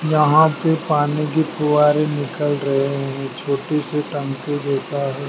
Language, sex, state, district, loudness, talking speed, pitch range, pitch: Hindi, male, Madhya Pradesh, Dhar, -19 LUFS, 145 wpm, 140-150 Hz, 150 Hz